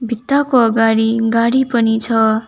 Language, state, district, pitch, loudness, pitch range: Nepali, West Bengal, Darjeeling, 230 Hz, -14 LUFS, 225-240 Hz